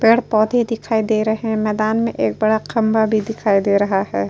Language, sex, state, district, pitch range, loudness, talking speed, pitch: Hindi, female, Uttar Pradesh, Hamirpur, 215-225 Hz, -18 LUFS, 225 wpm, 220 Hz